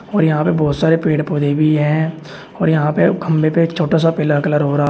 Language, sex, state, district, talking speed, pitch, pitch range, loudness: Hindi, male, Uttar Pradesh, Shamli, 245 wpm, 155 Hz, 150-165 Hz, -15 LUFS